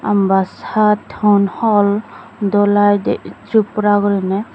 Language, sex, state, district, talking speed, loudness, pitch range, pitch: Chakma, female, Tripura, Dhalai, 90 wpm, -15 LUFS, 200-210 Hz, 205 Hz